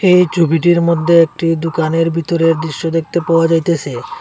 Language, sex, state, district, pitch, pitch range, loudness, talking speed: Bengali, male, Assam, Hailakandi, 165 Hz, 165-170 Hz, -14 LUFS, 140 wpm